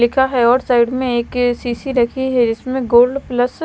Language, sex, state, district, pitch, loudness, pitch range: Hindi, female, Himachal Pradesh, Shimla, 245 Hz, -16 LUFS, 240-260 Hz